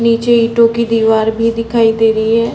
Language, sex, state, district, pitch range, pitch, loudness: Hindi, female, Chhattisgarh, Balrampur, 225-230 Hz, 230 Hz, -12 LUFS